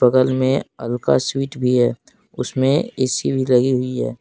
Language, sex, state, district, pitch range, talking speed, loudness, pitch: Hindi, male, Jharkhand, Deoghar, 125-130 Hz, 170 wpm, -19 LUFS, 130 Hz